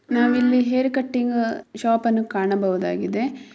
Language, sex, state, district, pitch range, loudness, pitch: Kannada, female, Karnataka, Mysore, 220-250 Hz, -21 LUFS, 240 Hz